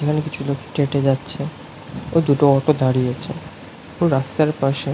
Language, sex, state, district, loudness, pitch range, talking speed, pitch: Bengali, male, West Bengal, North 24 Parganas, -20 LUFS, 135-150 Hz, 170 wpm, 140 Hz